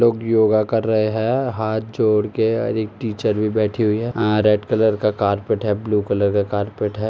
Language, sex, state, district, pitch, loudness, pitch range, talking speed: Hindi, male, Uttar Pradesh, Jalaun, 110 Hz, -19 LUFS, 105-110 Hz, 220 wpm